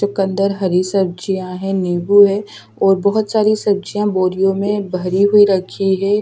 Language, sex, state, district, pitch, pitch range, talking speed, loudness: Hindi, female, Delhi, New Delhi, 195 Hz, 190-205 Hz, 155 wpm, -16 LUFS